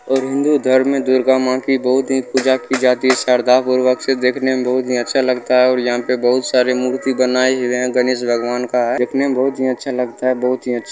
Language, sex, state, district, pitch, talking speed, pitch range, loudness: Bhojpuri, male, Bihar, Saran, 130 Hz, 260 wpm, 125-130 Hz, -16 LUFS